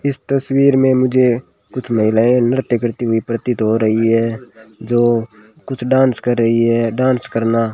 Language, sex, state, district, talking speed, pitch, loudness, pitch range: Hindi, male, Rajasthan, Bikaner, 170 wpm, 120 Hz, -15 LUFS, 115-130 Hz